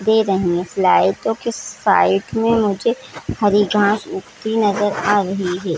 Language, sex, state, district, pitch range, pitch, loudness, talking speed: Hindi, female, Jharkhand, Sahebganj, 190-220 Hz, 205 Hz, -17 LUFS, 145 wpm